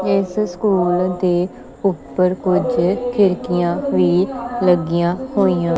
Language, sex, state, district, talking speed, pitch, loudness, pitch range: Punjabi, female, Punjab, Kapurthala, 95 wpm, 180 Hz, -18 LUFS, 175-195 Hz